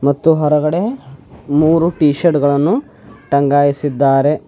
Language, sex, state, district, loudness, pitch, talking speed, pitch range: Kannada, male, Karnataka, Bidar, -14 LUFS, 145 Hz, 95 wpm, 140-160 Hz